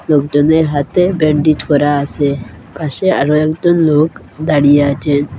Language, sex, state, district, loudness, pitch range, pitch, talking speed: Bengali, female, Assam, Hailakandi, -13 LUFS, 145-155 Hz, 150 Hz, 120 wpm